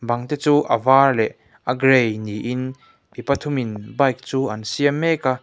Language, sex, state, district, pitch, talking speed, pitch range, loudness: Mizo, male, Mizoram, Aizawl, 130 Hz, 200 wpm, 120-140 Hz, -20 LUFS